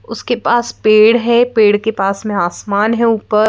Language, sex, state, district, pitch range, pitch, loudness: Hindi, female, Madhya Pradesh, Bhopal, 205-235 Hz, 220 Hz, -13 LUFS